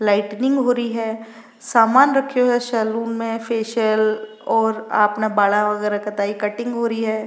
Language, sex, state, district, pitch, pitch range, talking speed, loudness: Rajasthani, female, Rajasthan, Nagaur, 225 Hz, 215-235 Hz, 155 wpm, -19 LUFS